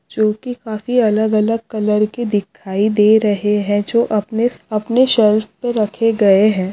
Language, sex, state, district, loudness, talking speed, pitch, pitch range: Hindi, female, Maharashtra, Aurangabad, -16 LUFS, 160 wpm, 215 Hz, 210-230 Hz